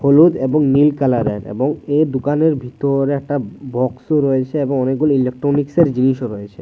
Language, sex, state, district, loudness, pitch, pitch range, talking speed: Bengali, male, Tripura, West Tripura, -17 LUFS, 140 Hz, 130-145 Hz, 145 wpm